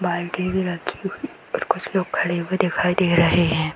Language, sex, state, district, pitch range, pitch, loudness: Hindi, female, Bihar, Darbhanga, 170-185 Hz, 175 Hz, -22 LUFS